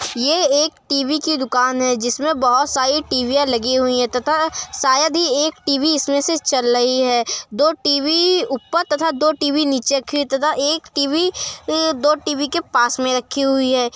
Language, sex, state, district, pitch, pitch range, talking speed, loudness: Hindi, female, Uttar Pradesh, Muzaffarnagar, 285 Hz, 255-310 Hz, 175 wpm, -17 LUFS